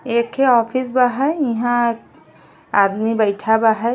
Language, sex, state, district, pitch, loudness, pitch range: Bhojpuri, female, Uttar Pradesh, Ghazipur, 235 Hz, -17 LUFS, 220-255 Hz